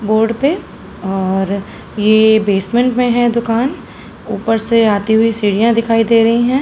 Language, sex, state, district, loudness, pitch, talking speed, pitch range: Hindi, female, Uttar Pradesh, Jalaun, -14 LUFS, 225 Hz, 155 wpm, 210-235 Hz